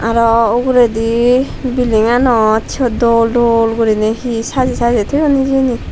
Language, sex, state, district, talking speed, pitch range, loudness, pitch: Chakma, female, Tripura, Dhalai, 120 wpm, 230-255 Hz, -13 LUFS, 235 Hz